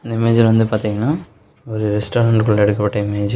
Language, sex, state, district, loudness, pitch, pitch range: Tamil, male, Tamil Nadu, Namakkal, -17 LUFS, 110 Hz, 105-115 Hz